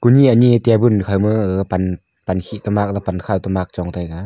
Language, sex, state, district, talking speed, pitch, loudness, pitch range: Wancho, male, Arunachal Pradesh, Longding, 240 wpm, 100 Hz, -17 LUFS, 95-110 Hz